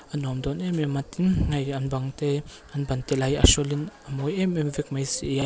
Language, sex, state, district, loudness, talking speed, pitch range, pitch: Mizo, female, Mizoram, Aizawl, -26 LUFS, 285 wpm, 135-150 Hz, 145 Hz